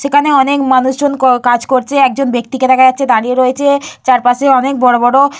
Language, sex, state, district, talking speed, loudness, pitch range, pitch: Bengali, female, West Bengal, Purulia, 180 wpm, -11 LUFS, 255-275 Hz, 260 Hz